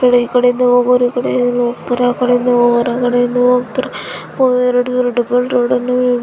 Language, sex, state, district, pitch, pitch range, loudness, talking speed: Kannada, female, Karnataka, Gulbarga, 245 Hz, 245-250 Hz, -14 LUFS, 155 wpm